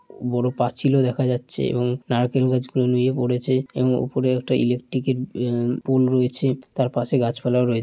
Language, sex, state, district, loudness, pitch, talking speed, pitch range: Bengali, male, West Bengal, Malda, -22 LUFS, 125 Hz, 190 wpm, 125-130 Hz